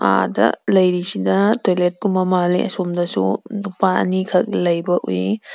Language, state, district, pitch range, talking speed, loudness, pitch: Manipuri, Manipur, Imphal West, 175-195 Hz, 110 wpm, -18 LUFS, 180 Hz